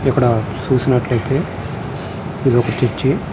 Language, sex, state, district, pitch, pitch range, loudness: Telugu, male, Andhra Pradesh, Srikakulam, 125 Hz, 115-135 Hz, -18 LUFS